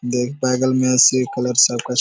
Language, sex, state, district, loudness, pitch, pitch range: Hindi, male, Bihar, Jahanabad, -16 LUFS, 125 Hz, 125-130 Hz